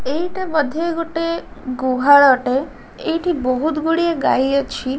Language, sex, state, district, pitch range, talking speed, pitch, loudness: Odia, female, Odisha, Khordha, 260-330 Hz, 110 wpm, 290 Hz, -18 LUFS